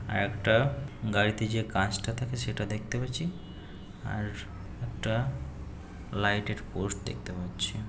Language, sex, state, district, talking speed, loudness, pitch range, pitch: Bengali, male, West Bengal, Jhargram, 120 wpm, -31 LUFS, 95-115 Hz, 105 Hz